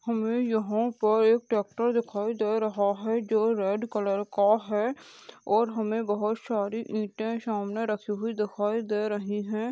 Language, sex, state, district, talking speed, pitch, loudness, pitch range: Hindi, female, Chhattisgarh, Balrampur, 160 wpm, 215 Hz, -28 LUFS, 210-225 Hz